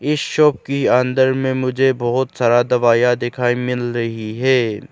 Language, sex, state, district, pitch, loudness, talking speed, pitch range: Hindi, male, Arunachal Pradesh, Lower Dibang Valley, 125 Hz, -17 LUFS, 160 wpm, 120-130 Hz